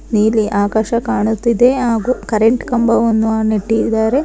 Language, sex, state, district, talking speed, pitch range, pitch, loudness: Kannada, female, Karnataka, Bangalore, 115 wpm, 220-235 Hz, 225 Hz, -15 LUFS